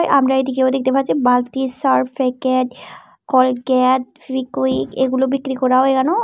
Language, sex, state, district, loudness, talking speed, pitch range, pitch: Bengali, female, Tripura, Unakoti, -17 LUFS, 135 wpm, 255-265 Hz, 260 Hz